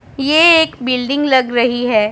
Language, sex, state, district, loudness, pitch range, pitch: Hindi, female, Punjab, Pathankot, -13 LUFS, 245-290 Hz, 255 Hz